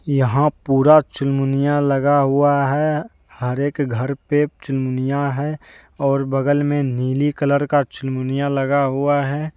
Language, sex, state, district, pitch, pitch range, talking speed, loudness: Hindi, male, Jharkhand, Deoghar, 140 Hz, 135-145 Hz, 140 wpm, -19 LUFS